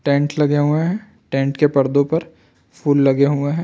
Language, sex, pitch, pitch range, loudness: Chhattisgarhi, male, 145 Hz, 140-160 Hz, -18 LUFS